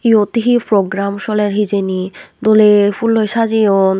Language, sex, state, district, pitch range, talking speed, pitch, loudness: Chakma, female, Tripura, West Tripura, 200-225 Hz, 135 wpm, 210 Hz, -14 LUFS